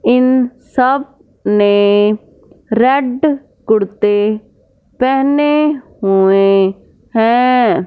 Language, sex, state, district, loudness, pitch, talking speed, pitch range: Hindi, female, Punjab, Fazilka, -13 LUFS, 245 Hz, 60 wpm, 205-265 Hz